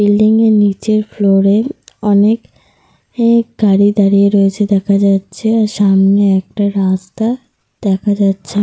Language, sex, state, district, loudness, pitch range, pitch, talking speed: Bengali, female, Jharkhand, Sahebganj, -12 LUFS, 195-215 Hz, 205 Hz, 120 wpm